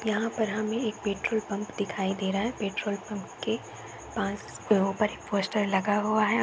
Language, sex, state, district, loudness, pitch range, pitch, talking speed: Hindi, female, Uttar Pradesh, Varanasi, -29 LUFS, 200-215 Hz, 205 Hz, 185 wpm